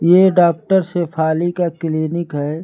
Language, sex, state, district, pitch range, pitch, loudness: Hindi, male, Uttar Pradesh, Lucknow, 160-175 Hz, 170 Hz, -16 LUFS